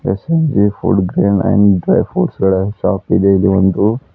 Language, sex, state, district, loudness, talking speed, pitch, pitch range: Kannada, male, Karnataka, Bidar, -13 LUFS, 130 wpm, 100 Hz, 95-110 Hz